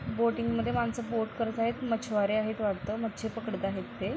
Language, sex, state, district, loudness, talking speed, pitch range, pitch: Marathi, female, Maharashtra, Aurangabad, -31 LUFS, 185 wpm, 215-230 Hz, 225 Hz